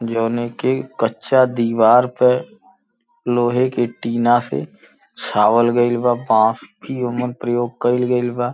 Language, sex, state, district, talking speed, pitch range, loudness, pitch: Bhojpuri, male, Uttar Pradesh, Gorakhpur, 125 wpm, 115-125 Hz, -18 LUFS, 120 Hz